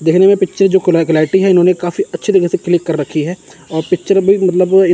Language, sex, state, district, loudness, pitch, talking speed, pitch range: Hindi, male, Chandigarh, Chandigarh, -13 LUFS, 180 Hz, 220 wpm, 165-190 Hz